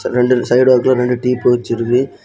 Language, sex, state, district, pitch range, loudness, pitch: Tamil, male, Tamil Nadu, Kanyakumari, 120-125 Hz, -14 LUFS, 125 Hz